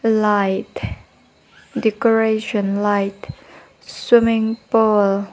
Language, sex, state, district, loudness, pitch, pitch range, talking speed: Mizo, female, Mizoram, Aizawl, -18 LUFS, 215 Hz, 200-225 Hz, 65 wpm